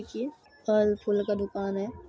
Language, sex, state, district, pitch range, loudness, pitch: Maithili, female, Bihar, Supaul, 205-230 Hz, -29 LUFS, 210 Hz